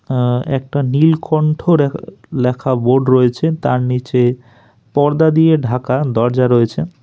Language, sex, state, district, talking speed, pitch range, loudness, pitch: Bengali, male, West Bengal, Alipurduar, 110 wpm, 125-155 Hz, -15 LUFS, 130 Hz